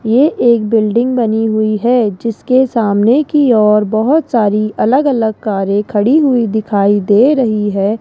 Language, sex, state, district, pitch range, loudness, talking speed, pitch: Hindi, female, Rajasthan, Jaipur, 210-250 Hz, -12 LUFS, 155 wpm, 225 Hz